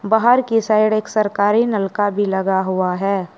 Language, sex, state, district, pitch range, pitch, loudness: Hindi, male, Uttar Pradesh, Shamli, 195-215 Hz, 205 Hz, -17 LUFS